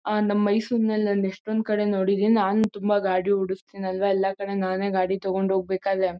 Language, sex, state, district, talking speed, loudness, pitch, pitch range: Kannada, female, Karnataka, Mysore, 185 wpm, -24 LUFS, 200 Hz, 190-210 Hz